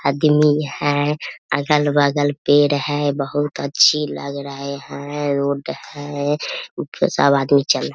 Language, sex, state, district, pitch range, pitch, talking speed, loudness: Hindi, female, Bihar, Samastipur, 140-145 Hz, 145 Hz, 130 wpm, -19 LUFS